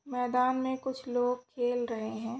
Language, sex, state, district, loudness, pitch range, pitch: Hindi, female, West Bengal, Jalpaiguri, -32 LUFS, 245-260 Hz, 245 Hz